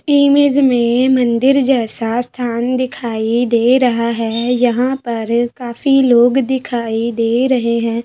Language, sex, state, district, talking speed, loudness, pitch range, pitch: Hindi, female, Bihar, Araria, 125 wpm, -14 LUFS, 235-260 Hz, 240 Hz